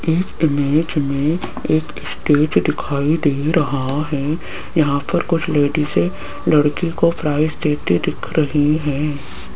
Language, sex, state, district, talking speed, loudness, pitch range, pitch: Hindi, female, Rajasthan, Jaipur, 125 wpm, -18 LUFS, 140-155 Hz, 150 Hz